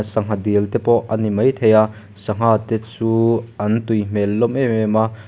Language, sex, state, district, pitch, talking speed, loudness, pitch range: Mizo, male, Mizoram, Aizawl, 110 Hz, 205 wpm, -18 LUFS, 105-115 Hz